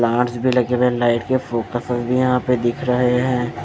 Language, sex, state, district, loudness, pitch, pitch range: Hindi, male, Delhi, New Delhi, -19 LUFS, 125 Hz, 120-125 Hz